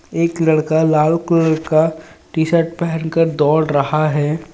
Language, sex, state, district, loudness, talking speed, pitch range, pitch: Hindi, male, Jharkhand, Ranchi, -16 LUFS, 160 wpm, 155-165 Hz, 160 Hz